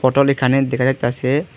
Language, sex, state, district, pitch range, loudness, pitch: Bengali, male, Tripura, Dhalai, 125-140 Hz, -17 LUFS, 130 Hz